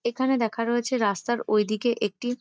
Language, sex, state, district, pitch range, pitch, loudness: Bengali, female, West Bengal, Kolkata, 215-245 Hz, 235 Hz, -25 LUFS